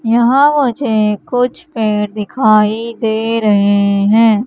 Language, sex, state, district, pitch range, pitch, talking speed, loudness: Hindi, female, Madhya Pradesh, Katni, 210-240 Hz, 220 Hz, 105 wpm, -13 LUFS